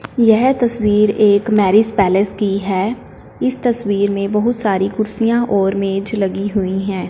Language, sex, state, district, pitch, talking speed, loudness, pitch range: Hindi, female, Punjab, Fazilka, 205 Hz, 150 wpm, -16 LUFS, 195-225 Hz